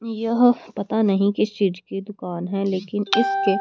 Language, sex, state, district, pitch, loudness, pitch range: Hindi, female, Haryana, Rohtak, 200 Hz, -22 LUFS, 195-225 Hz